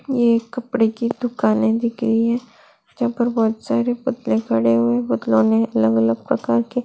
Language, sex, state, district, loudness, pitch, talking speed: Hindi, female, Bihar, Saran, -19 LUFS, 225 Hz, 185 wpm